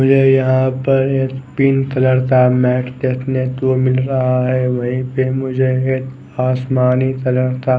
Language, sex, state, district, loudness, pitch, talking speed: Hindi, male, Odisha, Khordha, -16 LUFS, 130 Hz, 160 wpm